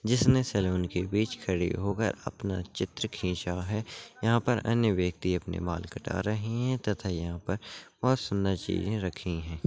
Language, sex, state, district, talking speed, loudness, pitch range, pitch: Hindi, male, Rajasthan, Churu, 165 wpm, -30 LUFS, 90-110 Hz, 100 Hz